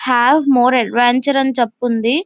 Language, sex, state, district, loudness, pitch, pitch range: Telugu, female, Andhra Pradesh, Visakhapatnam, -14 LUFS, 245 Hz, 240-270 Hz